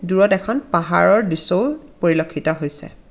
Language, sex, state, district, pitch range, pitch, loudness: Assamese, female, Assam, Kamrup Metropolitan, 160-215 Hz, 180 Hz, -16 LUFS